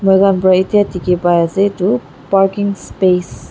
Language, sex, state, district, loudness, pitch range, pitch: Nagamese, female, Nagaland, Dimapur, -14 LUFS, 175-195 Hz, 185 Hz